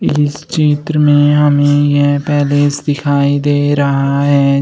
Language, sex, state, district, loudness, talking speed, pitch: Hindi, male, Uttar Pradesh, Shamli, -12 LUFS, 130 wpm, 145 Hz